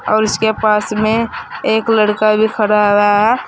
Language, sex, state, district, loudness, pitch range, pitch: Hindi, female, Uttar Pradesh, Saharanpur, -14 LUFS, 210-220 Hz, 215 Hz